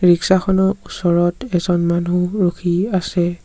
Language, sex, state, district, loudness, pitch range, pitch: Assamese, male, Assam, Sonitpur, -17 LUFS, 175-190 Hz, 180 Hz